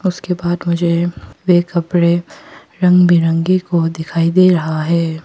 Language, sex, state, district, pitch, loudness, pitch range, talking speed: Hindi, female, Arunachal Pradesh, Papum Pare, 175 Hz, -15 LUFS, 165-180 Hz, 135 wpm